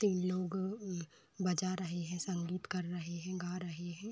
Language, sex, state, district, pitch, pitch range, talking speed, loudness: Hindi, female, Uttar Pradesh, Varanasi, 180 Hz, 175-185 Hz, 190 wpm, -39 LUFS